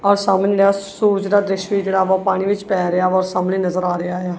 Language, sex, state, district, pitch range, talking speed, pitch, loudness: Punjabi, female, Punjab, Kapurthala, 185-200 Hz, 275 wpm, 190 Hz, -18 LUFS